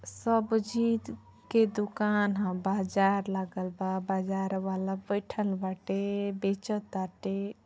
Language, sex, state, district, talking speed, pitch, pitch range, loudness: Hindi, female, Uttar Pradesh, Ghazipur, 110 wpm, 195 Hz, 190-205 Hz, -31 LUFS